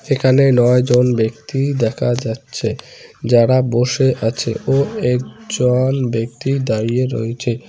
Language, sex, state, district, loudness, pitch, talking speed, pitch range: Bengali, male, West Bengal, Cooch Behar, -16 LUFS, 125 Hz, 110 wpm, 115-130 Hz